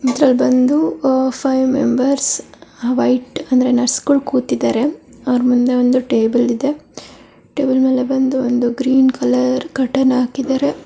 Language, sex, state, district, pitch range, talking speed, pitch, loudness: Kannada, female, Karnataka, Belgaum, 250-270 Hz, 120 wpm, 260 Hz, -16 LUFS